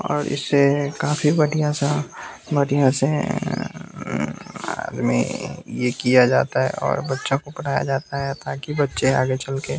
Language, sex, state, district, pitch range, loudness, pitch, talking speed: Hindi, male, Bihar, West Champaran, 135-150 Hz, -21 LUFS, 140 Hz, 160 wpm